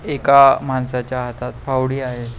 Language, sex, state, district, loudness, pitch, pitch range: Marathi, male, Maharashtra, Pune, -17 LUFS, 130 Hz, 125-135 Hz